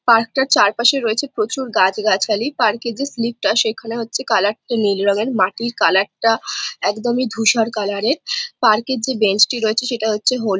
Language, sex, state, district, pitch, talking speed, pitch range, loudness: Bengali, female, West Bengal, Jhargram, 225 Hz, 170 wpm, 210-240 Hz, -17 LUFS